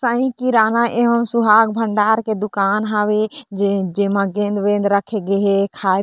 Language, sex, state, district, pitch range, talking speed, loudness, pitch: Chhattisgarhi, female, Chhattisgarh, Korba, 200-225 Hz, 140 wpm, -17 LUFS, 210 Hz